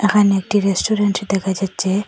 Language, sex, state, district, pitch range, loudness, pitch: Bengali, female, Assam, Hailakandi, 190-205 Hz, -17 LUFS, 195 Hz